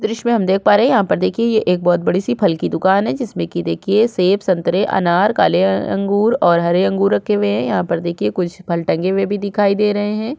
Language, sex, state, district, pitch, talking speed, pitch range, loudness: Hindi, female, Chhattisgarh, Sukma, 195 Hz, 260 wpm, 175-210 Hz, -16 LUFS